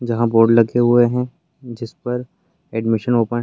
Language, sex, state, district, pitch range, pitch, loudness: Hindi, male, Uttar Pradesh, Varanasi, 115-125 Hz, 120 Hz, -17 LUFS